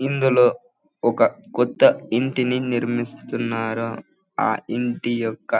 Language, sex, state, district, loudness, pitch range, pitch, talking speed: Telugu, male, Andhra Pradesh, Anantapur, -21 LUFS, 115-135 Hz, 120 Hz, 85 wpm